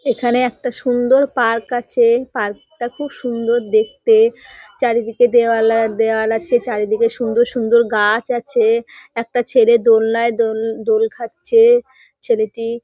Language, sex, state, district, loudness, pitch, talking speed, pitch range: Bengali, female, West Bengal, North 24 Parganas, -16 LUFS, 240 Hz, 110 wpm, 230-280 Hz